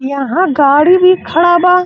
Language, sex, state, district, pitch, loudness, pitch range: Bhojpuri, male, Uttar Pradesh, Gorakhpur, 345 Hz, -10 LUFS, 280-365 Hz